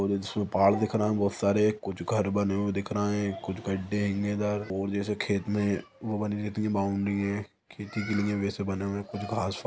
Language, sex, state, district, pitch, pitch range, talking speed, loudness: Hindi, male, Chhattisgarh, Sukma, 100 Hz, 100-105 Hz, 240 wpm, -29 LUFS